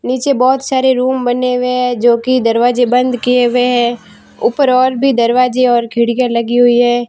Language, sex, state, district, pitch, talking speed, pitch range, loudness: Hindi, female, Rajasthan, Barmer, 250 Hz, 195 wpm, 240-255 Hz, -12 LUFS